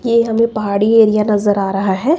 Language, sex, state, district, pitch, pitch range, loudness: Hindi, female, Himachal Pradesh, Shimla, 215 Hz, 200-230 Hz, -14 LUFS